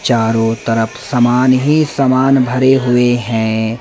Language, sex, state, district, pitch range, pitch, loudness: Hindi, male, Madhya Pradesh, Umaria, 115-130 Hz, 125 Hz, -13 LUFS